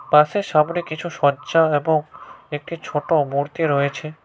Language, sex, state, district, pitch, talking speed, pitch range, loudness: Bengali, male, West Bengal, Cooch Behar, 150 Hz, 115 wpm, 140-160 Hz, -20 LUFS